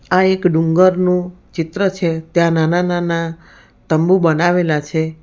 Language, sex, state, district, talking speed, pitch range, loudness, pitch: Gujarati, female, Gujarat, Valsad, 125 wpm, 160-180 Hz, -16 LUFS, 170 Hz